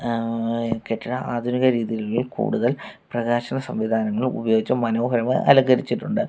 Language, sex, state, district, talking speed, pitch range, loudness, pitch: Malayalam, male, Kerala, Kollam, 95 wpm, 115-125 Hz, -22 LUFS, 120 Hz